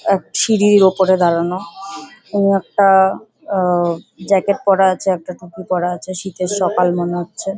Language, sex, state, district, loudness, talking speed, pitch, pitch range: Bengali, female, West Bengal, Paschim Medinipur, -16 LUFS, 150 wpm, 190 Hz, 180-195 Hz